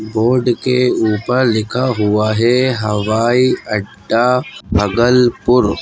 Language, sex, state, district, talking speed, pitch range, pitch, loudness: Hindi, male, Bihar, Bhagalpur, 95 wpm, 105-125 Hz, 115 Hz, -15 LUFS